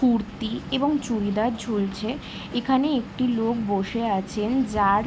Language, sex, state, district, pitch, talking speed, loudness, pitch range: Bengali, female, West Bengal, Jalpaiguri, 230 Hz, 130 wpm, -25 LUFS, 210-250 Hz